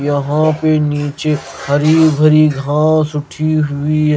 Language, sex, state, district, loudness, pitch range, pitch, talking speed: Hindi, male, Maharashtra, Gondia, -14 LUFS, 145-155 Hz, 150 Hz, 115 wpm